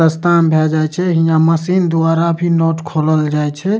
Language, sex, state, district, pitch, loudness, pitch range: Maithili, male, Bihar, Supaul, 165 Hz, -14 LUFS, 155-170 Hz